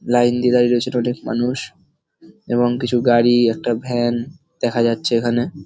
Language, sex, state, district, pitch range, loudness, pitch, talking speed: Bengali, male, West Bengal, North 24 Parganas, 120-125 Hz, -18 LUFS, 120 Hz, 140 wpm